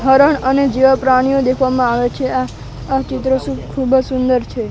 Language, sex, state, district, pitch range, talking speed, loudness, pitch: Gujarati, male, Gujarat, Gandhinagar, 255-265 Hz, 190 wpm, -15 LUFS, 260 Hz